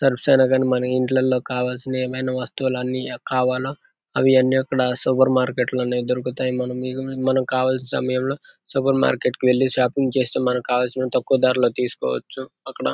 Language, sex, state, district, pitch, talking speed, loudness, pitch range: Telugu, male, Andhra Pradesh, Guntur, 130 Hz, 150 wpm, -21 LUFS, 125-130 Hz